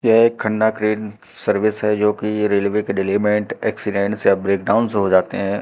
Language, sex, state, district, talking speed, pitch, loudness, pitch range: Hindi, male, Madhya Pradesh, Katni, 180 wpm, 105 Hz, -18 LUFS, 100-110 Hz